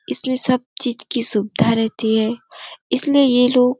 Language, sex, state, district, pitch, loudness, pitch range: Hindi, female, Uttar Pradesh, Gorakhpur, 245 Hz, -16 LUFS, 225-255 Hz